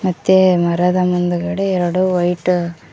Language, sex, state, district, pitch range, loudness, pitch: Kannada, female, Karnataka, Koppal, 175-185 Hz, -16 LUFS, 180 Hz